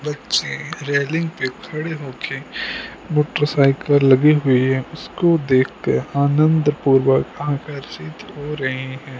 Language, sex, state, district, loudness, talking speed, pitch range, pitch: Hindi, male, Punjab, Kapurthala, -19 LUFS, 125 wpm, 135-155 Hz, 145 Hz